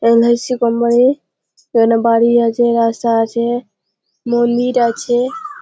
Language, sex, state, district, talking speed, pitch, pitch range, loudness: Bengali, female, West Bengal, Malda, 95 wpm, 235 Hz, 230-240 Hz, -14 LUFS